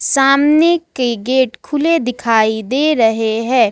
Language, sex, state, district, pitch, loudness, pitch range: Hindi, female, Jharkhand, Ranchi, 255 Hz, -14 LUFS, 225-295 Hz